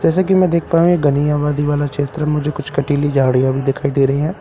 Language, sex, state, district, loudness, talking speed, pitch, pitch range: Hindi, male, Bihar, Katihar, -16 LUFS, 315 wpm, 145 Hz, 140-160 Hz